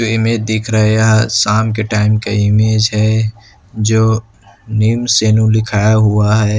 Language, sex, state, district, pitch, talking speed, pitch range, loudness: Hindi, male, Chhattisgarh, Kabirdham, 110 Hz, 155 wpm, 105-110 Hz, -13 LUFS